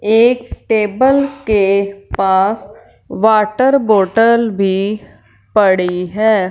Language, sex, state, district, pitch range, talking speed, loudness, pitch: Hindi, female, Punjab, Fazilka, 195-225 Hz, 85 wpm, -14 LUFS, 210 Hz